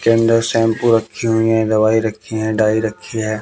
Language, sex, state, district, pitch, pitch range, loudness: Hindi, male, Haryana, Jhajjar, 110 Hz, 110-115 Hz, -16 LUFS